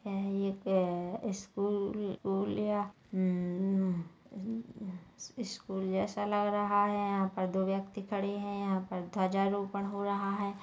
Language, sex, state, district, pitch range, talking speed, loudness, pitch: Hindi, female, Chhattisgarh, Kabirdham, 190-205 Hz, 75 wpm, -34 LUFS, 200 Hz